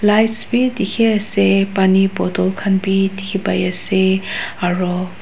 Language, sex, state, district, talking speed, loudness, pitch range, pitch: Nagamese, female, Nagaland, Dimapur, 140 wpm, -17 LUFS, 190-210 Hz, 195 Hz